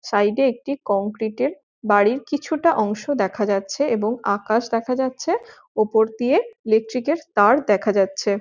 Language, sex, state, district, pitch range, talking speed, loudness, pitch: Bengali, female, West Bengal, Jhargram, 205-280 Hz, 140 wpm, -21 LUFS, 225 Hz